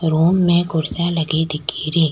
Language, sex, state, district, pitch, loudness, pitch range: Rajasthani, female, Rajasthan, Churu, 165 Hz, -18 LUFS, 160-170 Hz